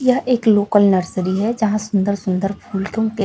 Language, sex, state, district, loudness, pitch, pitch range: Hindi, female, Chhattisgarh, Raipur, -18 LUFS, 205 Hz, 195-220 Hz